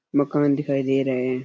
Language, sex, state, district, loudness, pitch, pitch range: Rajasthani, male, Rajasthan, Churu, -22 LUFS, 135 Hz, 130-145 Hz